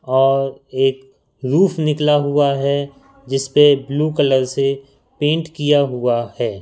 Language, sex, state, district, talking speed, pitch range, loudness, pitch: Hindi, male, Madhya Pradesh, Katni, 135 wpm, 135-145 Hz, -17 LUFS, 140 Hz